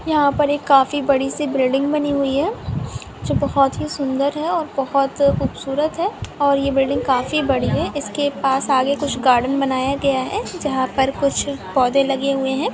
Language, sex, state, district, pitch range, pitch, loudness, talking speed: Hindi, female, Andhra Pradesh, Krishna, 270-290 Hz, 275 Hz, -19 LUFS, 185 wpm